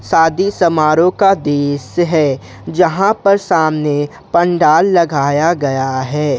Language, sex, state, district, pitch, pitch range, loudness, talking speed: Hindi, male, Jharkhand, Garhwa, 155 Hz, 145-175 Hz, -13 LUFS, 115 wpm